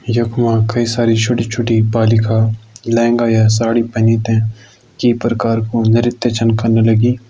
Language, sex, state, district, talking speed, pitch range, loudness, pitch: Garhwali, male, Uttarakhand, Uttarkashi, 155 wpm, 110-120 Hz, -14 LUFS, 115 Hz